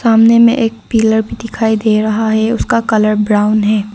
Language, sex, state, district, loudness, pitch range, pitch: Hindi, female, Arunachal Pradesh, Lower Dibang Valley, -12 LUFS, 215-225 Hz, 220 Hz